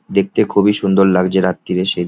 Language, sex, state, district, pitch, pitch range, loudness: Bengali, male, West Bengal, Jalpaiguri, 95 Hz, 90-100 Hz, -15 LUFS